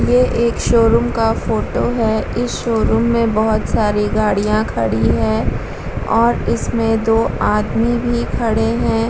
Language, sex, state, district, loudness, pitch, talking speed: Hindi, female, Bihar, Vaishali, -16 LUFS, 215 Hz, 140 wpm